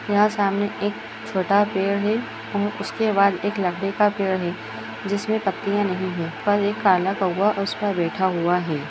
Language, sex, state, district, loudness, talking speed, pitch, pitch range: Hindi, female, Uttar Pradesh, Etah, -22 LUFS, 175 wpm, 195 Hz, 185-205 Hz